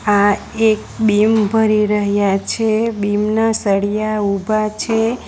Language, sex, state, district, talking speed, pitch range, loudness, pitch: Gujarati, female, Gujarat, Valsad, 125 wpm, 205-220 Hz, -16 LUFS, 215 Hz